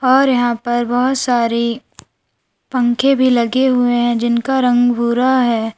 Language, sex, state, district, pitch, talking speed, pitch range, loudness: Hindi, female, Uttar Pradesh, Lalitpur, 245 Hz, 145 wpm, 235-255 Hz, -15 LUFS